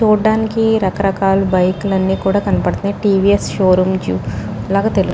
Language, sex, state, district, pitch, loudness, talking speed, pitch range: Telugu, female, Telangana, Nalgonda, 195 Hz, -15 LUFS, 130 wpm, 185-205 Hz